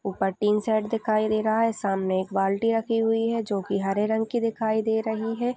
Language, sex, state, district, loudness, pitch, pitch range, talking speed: Hindi, female, Chhattisgarh, Balrampur, -25 LUFS, 220 Hz, 200-225 Hz, 235 wpm